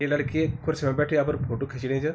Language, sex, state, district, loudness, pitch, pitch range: Garhwali, male, Uttarakhand, Tehri Garhwal, -26 LUFS, 145 Hz, 135-150 Hz